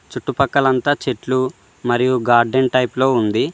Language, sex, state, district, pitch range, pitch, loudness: Telugu, male, Telangana, Mahabubabad, 125-135 Hz, 130 Hz, -17 LUFS